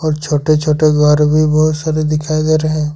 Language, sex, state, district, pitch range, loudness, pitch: Hindi, male, Jharkhand, Ranchi, 150-155 Hz, -13 LUFS, 155 Hz